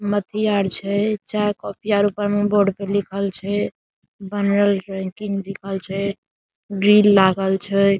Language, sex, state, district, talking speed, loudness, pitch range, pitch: Maithili, male, Bihar, Saharsa, 110 wpm, -20 LUFS, 195-205 Hz, 200 Hz